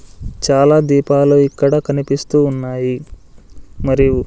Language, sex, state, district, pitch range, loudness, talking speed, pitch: Telugu, male, Andhra Pradesh, Sri Satya Sai, 125-140 Hz, -14 LUFS, 85 wpm, 140 Hz